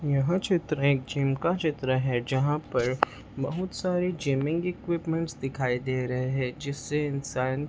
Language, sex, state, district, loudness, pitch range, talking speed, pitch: Hindi, male, Maharashtra, Mumbai Suburban, -28 LUFS, 130-165 Hz, 150 wpm, 140 Hz